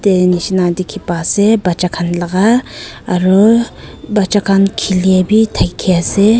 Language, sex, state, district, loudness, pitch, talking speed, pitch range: Nagamese, female, Nagaland, Kohima, -13 LUFS, 190 Hz, 130 wpm, 180-210 Hz